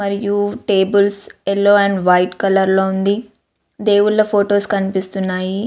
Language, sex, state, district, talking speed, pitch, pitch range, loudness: Telugu, female, Andhra Pradesh, Visakhapatnam, 115 wpm, 200 Hz, 190-205 Hz, -16 LUFS